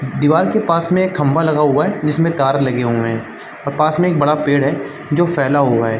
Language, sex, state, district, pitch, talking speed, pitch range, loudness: Hindi, male, Chhattisgarh, Bastar, 145 Hz, 250 wpm, 135-165 Hz, -16 LUFS